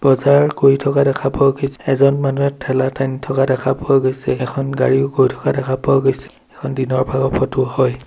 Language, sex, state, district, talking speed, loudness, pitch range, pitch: Assamese, male, Assam, Sonitpur, 195 wpm, -16 LUFS, 130-140 Hz, 135 Hz